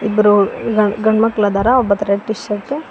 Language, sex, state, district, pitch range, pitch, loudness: Kannada, female, Karnataka, Koppal, 205-225 Hz, 215 Hz, -15 LUFS